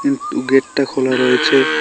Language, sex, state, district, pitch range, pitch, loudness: Bengali, male, West Bengal, Cooch Behar, 130-170 Hz, 135 Hz, -15 LUFS